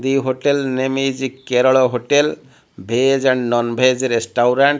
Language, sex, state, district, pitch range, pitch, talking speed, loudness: English, male, Odisha, Malkangiri, 125-135 Hz, 130 Hz, 125 wpm, -17 LUFS